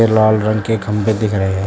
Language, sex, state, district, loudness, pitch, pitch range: Hindi, male, Uttar Pradesh, Shamli, -16 LUFS, 110 Hz, 105-110 Hz